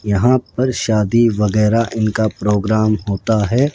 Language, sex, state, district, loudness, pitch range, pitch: Hindi, male, Rajasthan, Jaipur, -16 LUFS, 105-115 Hz, 110 Hz